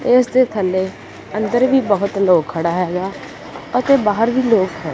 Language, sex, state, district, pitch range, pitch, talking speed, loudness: Punjabi, male, Punjab, Kapurthala, 185-250 Hz, 205 Hz, 160 wpm, -17 LUFS